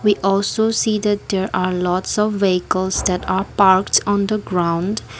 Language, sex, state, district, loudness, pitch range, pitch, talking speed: English, female, Assam, Kamrup Metropolitan, -18 LUFS, 185-205 Hz, 195 Hz, 175 wpm